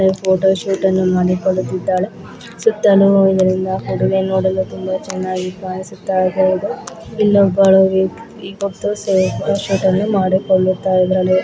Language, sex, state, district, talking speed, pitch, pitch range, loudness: Kannada, female, Karnataka, Belgaum, 75 wpm, 190 Hz, 185-195 Hz, -16 LUFS